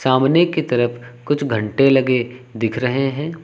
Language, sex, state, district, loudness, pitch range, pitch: Hindi, male, Uttar Pradesh, Lucknow, -18 LUFS, 120-140 Hz, 130 Hz